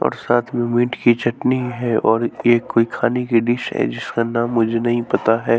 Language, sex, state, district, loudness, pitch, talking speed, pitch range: Hindi, male, Bihar, West Champaran, -18 LUFS, 120 Hz, 215 wpm, 115-120 Hz